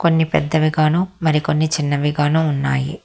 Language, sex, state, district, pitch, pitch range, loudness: Telugu, female, Telangana, Hyderabad, 155 Hz, 145-160 Hz, -18 LUFS